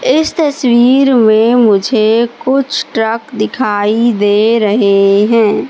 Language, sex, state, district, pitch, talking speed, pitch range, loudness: Hindi, female, Madhya Pradesh, Katni, 230 Hz, 105 wpm, 210-255 Hz, -11 LUFS